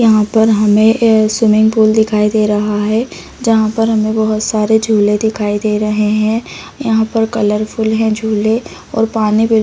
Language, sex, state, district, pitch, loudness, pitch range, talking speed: Hindi, female, Chhattisgarh, Bilaspur, 220 Hz, -13 LUFS, 215-225 Hz, 180 wpm